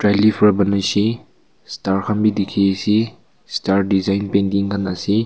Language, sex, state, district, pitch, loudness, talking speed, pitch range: Nagamese, male, Nagaland, Kohima, 100 Hz, -18 LUFS, 150 wpm, 100-105 Hz